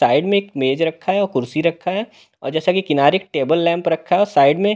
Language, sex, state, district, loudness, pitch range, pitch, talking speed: Hindi, male, Delhi, New Delhi, -18 LUFS, 145-195 Hz, 165 Hz, 275 wpm